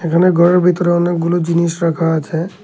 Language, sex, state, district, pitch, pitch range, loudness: Bengali, male, Tripura, Unakoti, 170 Hz, 165-175 Hz, -14 LUFS